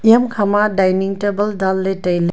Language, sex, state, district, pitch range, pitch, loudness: Wancho, female, Arunachal Pradesh, Longding, 190-210 Hz, 195 Hz, -16 LUFS